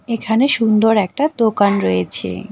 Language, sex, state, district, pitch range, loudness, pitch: Bengali, female, West Bengal, Cooch Behar, 205-230 Hz, -16 LUFS, 220 Hz